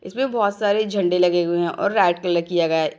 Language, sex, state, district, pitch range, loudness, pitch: Hindi, female, Bihar, Sitamarhi, 170-205 Hz, -20 LUFS, 180 Hz